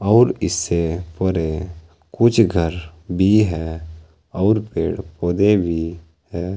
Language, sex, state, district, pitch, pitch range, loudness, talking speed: Hindi, male, Uttar Pradesh, Saharanpur, 85 Hz, 80-100 Hz, -19 LUFS, 120 wpm